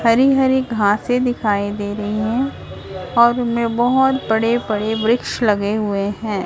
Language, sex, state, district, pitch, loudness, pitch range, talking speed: Hindi, female, Chhattisgarh, Raipur, 225 Hz, -18 LUFS, 210-245 Hz, 150 wpm